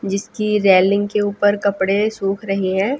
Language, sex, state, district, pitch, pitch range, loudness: Hindi, female, Haryana, Jhajjar, 200 Hz, 195-205 Hz, -17 LUFS